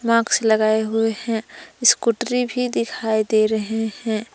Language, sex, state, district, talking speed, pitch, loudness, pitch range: Hindi, female, Jharkhand, Palamu, 140 wpm, 225 Hz, -20 LUFS, 220-235 Hz